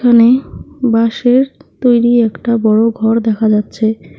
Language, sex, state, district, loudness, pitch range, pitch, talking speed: Bengali, female, West Bengal, Alipurduar, -12 LUFS, 220-245 Hz, 230 Hz, 115 wpm